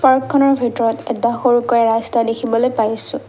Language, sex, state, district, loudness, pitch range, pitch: Assamese, female, Assam, Kamrup Metropolitan, -16 LUFS, 230-255 Hz, 240 Hz